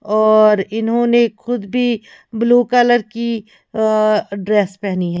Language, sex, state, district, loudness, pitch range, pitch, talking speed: Hindi, female, Himachal Pradesh, Shimla, -16 LUFS, 210-240 Hz, 220 Hz, 125 wpm